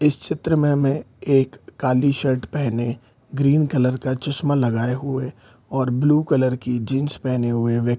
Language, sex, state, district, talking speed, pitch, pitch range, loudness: Hindi, male, Bihar, Gopalganj, 175 wpm, 130 Hz, 125-145 Hz, -21 LUFS